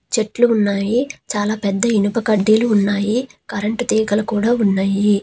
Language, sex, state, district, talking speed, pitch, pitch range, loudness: Telugu, female, Telangana, Hyderabad, 125 wpm, 215 Hz, 205-230 Hz, -17 LUFS